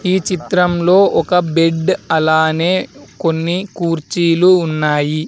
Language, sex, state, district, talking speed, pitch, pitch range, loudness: Telugu, male, Andhra Pradesh, Sri Satya Sai, 90 wpm, 170 Hz, 160-185 Hz, -14 LUFS